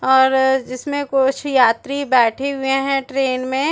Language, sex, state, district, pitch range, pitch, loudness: Hindi, female, Chhattisgarh, Bastar, 260-275 Hz, 265 Hz, -17 LUFS